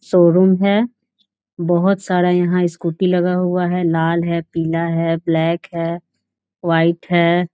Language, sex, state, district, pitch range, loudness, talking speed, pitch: Hindi, female, Bihar, Jahanabad, 170-180 Hz, -17 LUFS, 135 wpm, 175 Hz